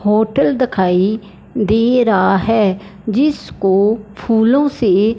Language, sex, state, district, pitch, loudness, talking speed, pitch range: Hindi, male, Punjab, Fazilka, 215 Hz, -15 LUFS, 95 wpm, 195-235 Hz